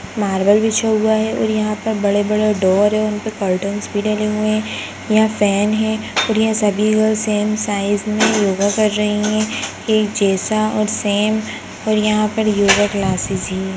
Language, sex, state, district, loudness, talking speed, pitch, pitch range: Hindi, female, Uttarakhand, Tehri Garhwal, -17 LUFS, 175 wpm, 215 Hz, 205-215 Hz